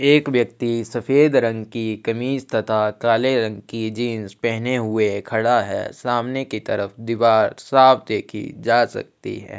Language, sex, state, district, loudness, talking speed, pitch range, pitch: Hindi, male, Chhattisgarh, Sukma, -20 LUFS, 150 wpm, 110-125 Hz, 115 Hz